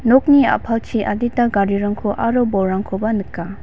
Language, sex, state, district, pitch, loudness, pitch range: Garo, female, Meghalaya, West Garo Hills, 215 Hz, -17 LUFS, 200-240 Hz